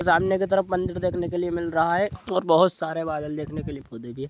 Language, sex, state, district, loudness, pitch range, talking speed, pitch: Hindi, male, Bihar, Jahanabad, -24 LUFS, 150-185 Hz, 280 wpm, 170 Hz